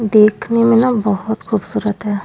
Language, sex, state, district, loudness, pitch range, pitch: Hindi, female, Goa, North and South Goa, -15 LUFS, 210-230 Hz, 215 Hz